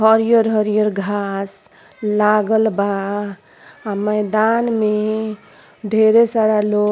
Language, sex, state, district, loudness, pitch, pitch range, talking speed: Bhojpuri, female, Uttar Pradesh, Ghazipur, -17 LUFS, 215 Hz, 205-220 Hz, 95 wpm